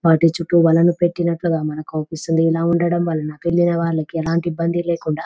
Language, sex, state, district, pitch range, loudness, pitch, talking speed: Telugu, female, Telangana, Nalgonda, 160-170 Hz, -18 LUFS, 165 Hz, 150 wpm